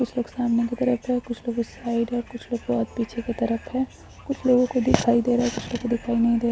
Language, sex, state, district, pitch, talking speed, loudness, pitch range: Hindi, female, Chhattisgarh, Bilaspur, 240 Hz, 285 wpm, -24 LUFS, 235-250 Hz